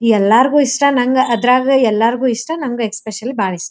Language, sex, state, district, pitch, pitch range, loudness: Kannada, female, Karnataka, Dharwad, 245 Hz, 225-260 Hz, -14 LUFS